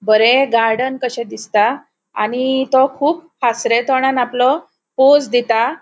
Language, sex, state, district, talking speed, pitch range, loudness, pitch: Konkani, female, Goa, North and South Goa, 125 wpm, 230-265 Hz, -15 LUFS, 250 Hz